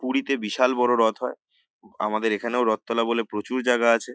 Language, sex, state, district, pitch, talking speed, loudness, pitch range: Bengali, male, West Bengal, North 24 Parganas, 115 Hz, 190 wpm, -24 LUFS, 110-125 Hz